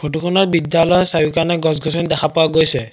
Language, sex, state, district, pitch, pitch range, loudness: Assamese, male, Assam, Sonitpur, 160 Hz, 155-170 Hz, -15 LUFS